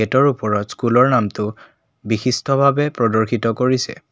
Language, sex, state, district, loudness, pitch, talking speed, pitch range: Assamese, male, Assam, Kamrup Metropolitan, -18 LUFS, 120 Hz, 100 wpm, 110-130 Hz